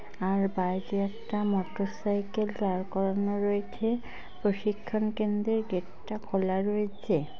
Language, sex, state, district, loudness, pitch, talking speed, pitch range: Bengali, female, West Bengal, Malda, -30 LUFS, 205 Hz, 105 wpm, 195-215 Hz